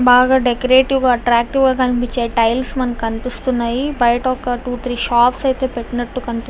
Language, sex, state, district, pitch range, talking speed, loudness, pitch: Telugu, female, Andhra Pradesh, Visakhapatnam, 240-255 Hz, 140 wpm, -16 LUFS, 245 Hz